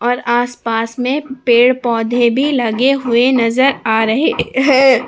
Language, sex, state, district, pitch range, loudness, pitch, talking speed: Hindi, female, Jharkhand, Palamu, 235-265 Hz, -14 LUFS, 245 Hz, 140 wpm